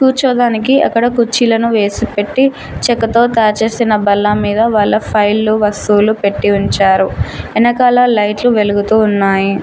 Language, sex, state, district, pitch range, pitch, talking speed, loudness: Telugu, female, Telangana, Mahabubabad, 205-235 Hz, 220 Hz, 120 wpm, -12 LUFS